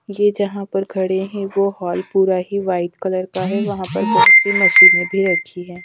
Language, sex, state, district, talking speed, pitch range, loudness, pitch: Hindi, female, Madhya Pradesh, Dhar, 215 wpm, 185-200 Hz, -15 LUFS, 190 Hz